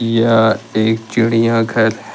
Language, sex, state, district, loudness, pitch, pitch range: Hindi, male, Jharkhand, Deoghar, -14 LUFS, 115 Hz, 110-115 Hz